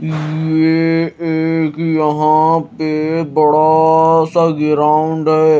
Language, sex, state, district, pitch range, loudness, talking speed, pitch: Hindi, male, Himachal Pradesh, Shimla, 155-160 Hz, -13 LUFS, 85 wpm, 160 Hz